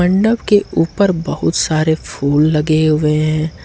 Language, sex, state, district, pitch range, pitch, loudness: Hindi, male, Jharkhand, Ranchi, 150-180 Hz, 155 Hz, -15 LUFS